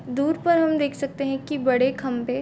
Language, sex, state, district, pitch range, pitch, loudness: Hindi, female, Chhattisgarh, Bilaspur, 260-300 Hz, 275 Hz, -23 LUFS